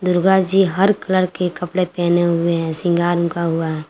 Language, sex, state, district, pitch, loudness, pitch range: Hindi, female, Jharkhand, Garhwa, 175 Hz, -17 LUFS, 170-185 Hz